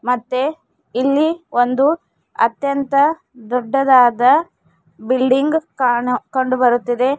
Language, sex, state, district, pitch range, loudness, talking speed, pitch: Kannada, female, Karnataka, Bidar, 245-285 Hz, -17 LUFS, 65 wpm, 260 Hz